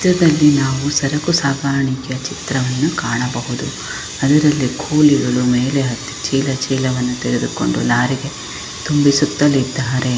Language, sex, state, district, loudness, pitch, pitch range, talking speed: Kannada, female, Karnataka, Chamarajanagar, -17 LUFS, 135 Hz, 125-145 Hz, 95 wpm